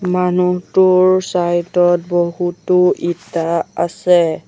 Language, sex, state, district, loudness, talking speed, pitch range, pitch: Assamese, male, Assam, Sonitpur, -15 LUFS, 80 wpm, 175-180 Hz, 175 Hz